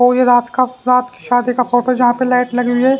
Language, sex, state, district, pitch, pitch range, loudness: Hindi, male, Haryana, Jhajjar, 250 Hz, 245-255 Hz, -14 LUFS